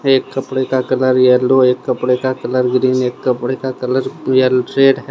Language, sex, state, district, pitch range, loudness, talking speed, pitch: Hindi, male, Jharkhand, Deoghar, 125-130 Hz, -15 LUFS, 200 wpm, 130 Hz